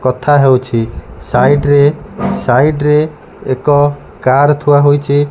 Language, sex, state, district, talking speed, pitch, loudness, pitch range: Odia, male, Odisha, Malkangiri, 100 wpm, 145 Hz, -11 LUFS, 130-145 Hz